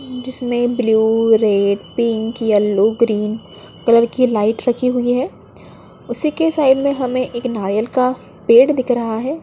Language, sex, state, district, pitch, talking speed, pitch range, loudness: Hindi, female, Bihar, Madhepura, 235 Hz, 155 wpm, 220-255 Hz, -16 LUFS